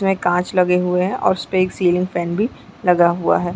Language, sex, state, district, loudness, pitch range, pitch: Hindi, female, Chhattisgarh, Sarguja, -18 LUFS, 175-185 Hz, 180 Hz